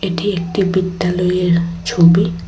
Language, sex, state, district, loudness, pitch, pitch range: Bengali, female, Tripura, West Tripura, -15 LUFS, 175 Hz, 170-185 Hz